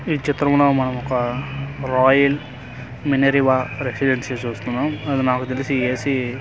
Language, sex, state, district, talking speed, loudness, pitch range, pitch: Telugu, male, Andhra Pradesh, Manyam, 120 wpm, -20 LUFS, 125-140 Hz, 130 Hz